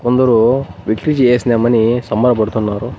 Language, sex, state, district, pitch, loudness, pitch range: Telugu, male, Andhra Pradesh, Annamaya, 120 Hz, -14 LUFS, 110-125 Hz